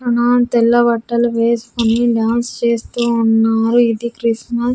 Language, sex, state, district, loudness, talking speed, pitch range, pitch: Telugu, female, Andhra Pradesh, Sri Satya Sai, -15 LUFS, 115 wpm, 230-240 Hz, 235 Hz